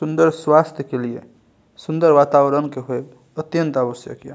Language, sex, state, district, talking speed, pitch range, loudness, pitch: Maithili, male, Bihar, Saharsa, 150 wpm, 125-155 Hz, -18 LUFS, 140 Hz